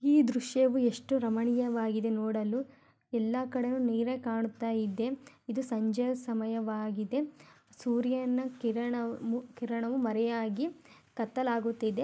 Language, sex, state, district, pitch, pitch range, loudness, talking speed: Kannada, female, Karnataka, Mysore, 240 Hz, 225-255 Hz, -32 LUFS, 85 wpm